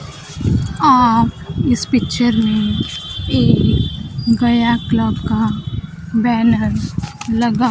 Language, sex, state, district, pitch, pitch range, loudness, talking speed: Hindi, female, Bihar, Kaimur, 235 Hz, 230-240 Hz, -16 LUFS, 80 wpm